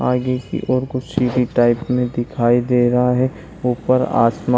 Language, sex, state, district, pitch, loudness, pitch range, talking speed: Hindi, male, Bihar, Saran, 125 Hz, -18 LUFS, 120-125 Hz, 185 wpm